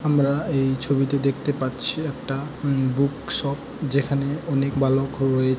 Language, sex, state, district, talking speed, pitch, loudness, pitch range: Bengali, male, West Bengal, Jalpaiguri, 140 wpm, 140 Hz, -23 LUFS, 135-145 Hz